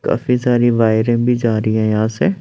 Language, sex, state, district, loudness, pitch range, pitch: Hindi, male, Chandigarh, Chandigarh, -15 LUFS, 110-125 Hz, 115 Hz